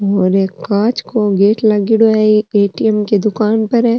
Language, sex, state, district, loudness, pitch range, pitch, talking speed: Rajasthani, female, Rajasthan, Nagaur, -13 LUFS, 205-220 Hz, 215 Hz, 195 wpm